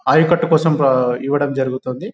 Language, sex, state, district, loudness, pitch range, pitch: Telugu, male, Telangana, Nalgonda, -16 LUFS, 130-160 Hz, 140 Hz